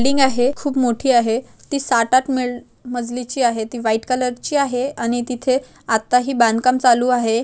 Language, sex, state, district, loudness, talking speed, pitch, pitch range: Marathi, male, Maharashtra, Chandrapur, -18 LUFS, 195 wpm, 250 Hz, 235-260 Hz